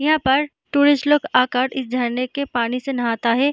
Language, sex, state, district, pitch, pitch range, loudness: Hindi, female, Bihar, Jahanabad, 265 Hz, 250-285 Hz, -19 LUFS